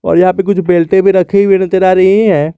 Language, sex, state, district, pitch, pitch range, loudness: Hindi, male, Jharkhand, Garhwa, 190 Hz, 185-195 Hz, -9 LUFS